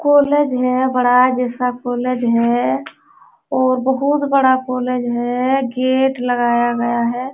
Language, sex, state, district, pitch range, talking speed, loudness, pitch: Hindi, female, Uttar Pradesh, Jalaun, 245-260 Hz, 125 wpm, -16 LUFS, 250 Hz